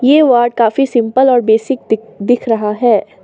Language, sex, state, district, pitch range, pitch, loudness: Hindi, female, Assam, Sonitpur, 220-260 Hz, 240 Hz, -12 LUFS